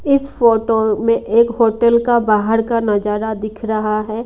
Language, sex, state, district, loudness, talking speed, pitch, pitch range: Hindi, female, Haryana, Rohtak, -16 LUFS, 170 wpm, 225 Hz, 215-235 Hz